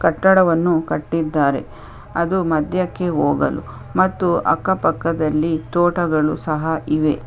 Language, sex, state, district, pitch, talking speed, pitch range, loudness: Kannada, female, Karnataka, Chamarajanagar, 165 Hz, 105 wpm, 155-175 Hz, -19 LUFS